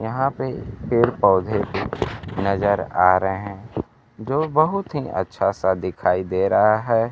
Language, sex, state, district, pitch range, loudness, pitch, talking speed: Hindi, male, Bihar, Kaimur, 95-120 Hz, -21 LUFS, 100 Hz, 135 wpm